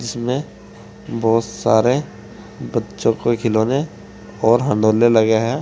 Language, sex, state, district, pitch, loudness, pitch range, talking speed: Hindi, male, Uttar Pradesh, Saharanpur, 115 Hz, -18 LUFS, 110-120 Hz, 95 wpm